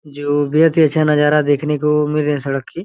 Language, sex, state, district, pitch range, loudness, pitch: Hindi, male, Chhattisgarh, Raigarh, 145-150 Hz, -15 LUFS, 150 Hz